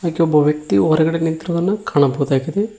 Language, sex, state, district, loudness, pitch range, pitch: Kannada, male, Karnataka, Koppal, -17 LUFS, 145-170 Hz, 160 Hz